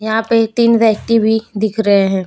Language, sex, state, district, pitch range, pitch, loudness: Hindi, female, Jharkhand, Deoghar, 210-230 Hz, 220 Hz, -14 LUFS